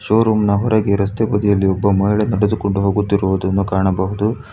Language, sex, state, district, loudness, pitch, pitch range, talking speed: Kannada, male, Karnataka, Bangalore, -16 LUFS, 100 Hz, 100-105 Hz, 130 wpm